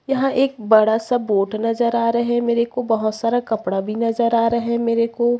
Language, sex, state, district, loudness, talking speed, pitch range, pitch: Hindi, female, Chhattisgarh, Raipur, -19 LUFS, 235 wpm, 220-240 Hz, 230 Hz